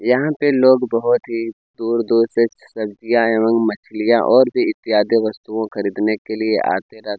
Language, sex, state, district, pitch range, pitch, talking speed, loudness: Hindi, male, Chhattisgarh, Kabirdham, 110-120 Hz, 115 Hz, 175 wpm, -18 LUFS